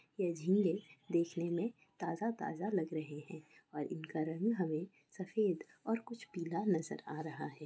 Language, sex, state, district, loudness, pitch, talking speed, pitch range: Hindi, female, Bihar, Sitamarhi, -39 LUFS, 170 Hz, 165 wpm, 155-200 Hz